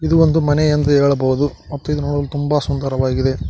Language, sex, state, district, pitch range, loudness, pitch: Kannada, male, Karnataka, Koppal, 140-150 Hz, -17 LUFS, 145 Hz